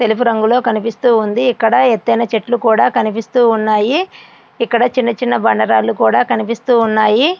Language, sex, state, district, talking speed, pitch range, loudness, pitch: Telugu, female, Andhra Pradesh, Srikakulam, 120 wpm, 220-245 Hz, -13 LUFS, 230 Hz